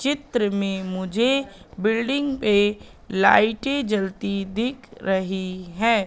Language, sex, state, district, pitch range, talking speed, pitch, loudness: Hindi, female, Madhya Pradesh, Katni, 195-245 Hz, 100 wpm, 210 Hz, -23 LUFS